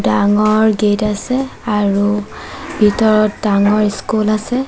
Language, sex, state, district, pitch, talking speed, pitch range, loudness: Assamese, female, Assam, Sonitpur, 210 Hz, 105 wpm, 205-215 Hz, -14 LUFS